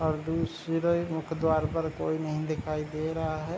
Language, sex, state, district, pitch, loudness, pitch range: Hindi, male, Bihar, Begusarai, 160 Hz, -30 LUFS, 155-165 Hz